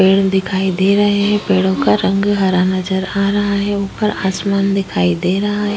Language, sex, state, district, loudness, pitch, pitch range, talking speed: Hindi, female, Chhattisgarh, Kabirdham, -15 LUFS, 195 Hz, 190-205 Hz, 200 wpm